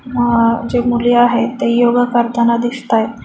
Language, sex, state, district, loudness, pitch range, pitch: Marathi, female, Maharashtra, Chandrapur, -14 LUFS, 235-245 Hz, 240 Hz